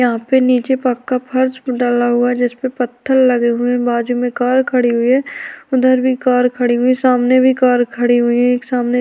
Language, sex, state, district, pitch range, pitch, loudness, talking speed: Hindi, female, Uttarakhand, Tehri Garhwal, 245-255 Hz, 250 Hz, -14 LUFS, 235 wpm